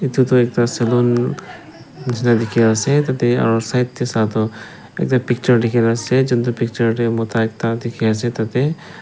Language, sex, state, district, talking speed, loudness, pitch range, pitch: Nagamese, male, Nagaland, Dimapur, 180 wpm, -17 LUFS, 115-125 Hz, 120 Hz